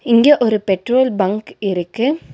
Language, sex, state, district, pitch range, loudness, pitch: Tamil, female, Tamil Nadu, Nilgiris, 195-255 Hz, -16 LUFS, 230 Hz